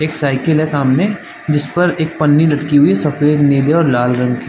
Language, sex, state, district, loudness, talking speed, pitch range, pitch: Hindi, male, Chhattisgarh, Bastar, -13 LUFS, 225 wpm, 140-155 Hz, 150 Hz